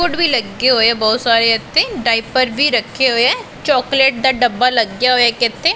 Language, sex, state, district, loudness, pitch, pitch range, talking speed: Punjabi, female, Punjab, Pathankot, -14 LUFS, 245 Hz, 230-265 Hz, 200 wpm